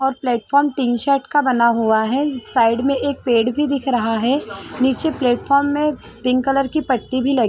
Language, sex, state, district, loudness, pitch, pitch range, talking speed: Hindi, female, Chhattisgarh, Korba, -18 LUFS, 260 Hz, 240-280 Hz, 190 wpm